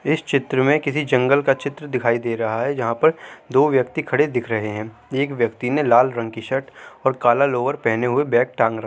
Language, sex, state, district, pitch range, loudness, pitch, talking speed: Hindi, male, Uttar Pradesh, Jyotiba Phule Nagar, 115-140 Hz, -20 LUFS, 130 Hz, 230 wpm